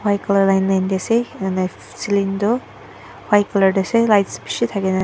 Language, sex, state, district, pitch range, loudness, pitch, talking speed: Nagamese, female, Nagaland, Dimapur, 190-215 Hz, -18 LUFS, 200 Hz, 165 wpm